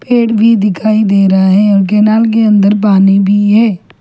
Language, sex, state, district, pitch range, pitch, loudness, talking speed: Hindi, female, Chhattisgarh, Jashpur, 195-220 Hz, 210 Hz, -9 LUFS, 180 wpm